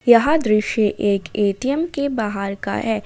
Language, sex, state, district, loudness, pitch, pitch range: Hindi, female, Jharkhand, Ranchi, -19 LUFS, 215 Hz, 200-255 Hz